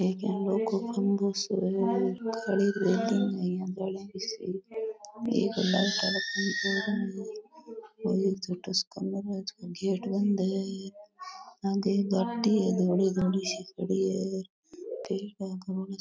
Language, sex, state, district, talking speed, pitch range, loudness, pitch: Rajasthani, female, Rajasthan, Nagaur, 50 wpm, 195-210 Hz, -30 LUFS, 200 Hz